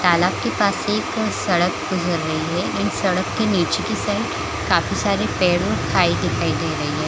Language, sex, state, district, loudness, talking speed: Hindi, female, Chhattisgarh, Bilaspur, -20 LUFS, 205 wpm